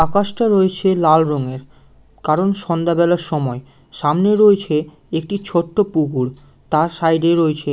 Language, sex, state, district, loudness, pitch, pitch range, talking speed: Bengali, male, West Bengal, Malda, -17 LUFS, 165 Hz, 150-185 Hz, 130 wpm